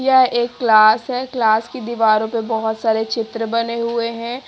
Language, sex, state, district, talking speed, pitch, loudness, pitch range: Hindi, female, Haryana, Jhajjar, 185 wpm, 230 Hz, -17 LUFS, 220-240 Hz